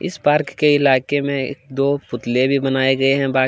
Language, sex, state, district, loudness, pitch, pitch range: Hindi, male, Chhattisgarh, Kabirdham, -18 LUFS, 135 Hz, 130-145 Hz